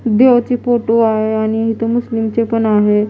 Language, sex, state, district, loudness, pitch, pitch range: Marathi, female, Maharashtra, Washim, -14 LUFS, 225 Hz, 220-235 Hz